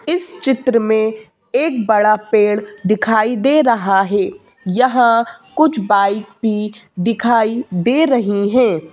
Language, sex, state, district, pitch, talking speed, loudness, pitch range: Hindi, female, Madhya Pradesh, Bhopal, 225 Hz, 120 wpm, -15 LUFS, 210-255 Hz